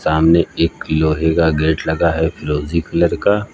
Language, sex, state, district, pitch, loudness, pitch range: Hindi, male, Uttar Pradesh, Lucknow, 80 Hz, -16 LUFS, 80-85 Hz